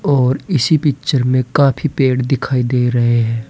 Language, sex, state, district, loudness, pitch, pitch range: Hindi, male, Uttar Pradesh, Saharanpur, -15 LUFS, 130 Hz, 125-145 Hz